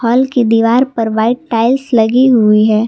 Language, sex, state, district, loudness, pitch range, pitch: Hindi, female, Jharkhand, Garhwa, -11 LUFS, 225-250 Hz, 230 Hz